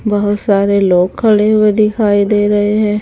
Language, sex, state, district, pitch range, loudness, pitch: Hindi, female, Haryana, Charkhi Dadri, 205-215 Hz, -12 LUFS, 210 Hz